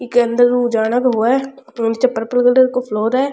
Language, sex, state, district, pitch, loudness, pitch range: Rajasthani, female, Rajasthan, Churu, 245 Hz, -15 LUFS, 230-255 Hz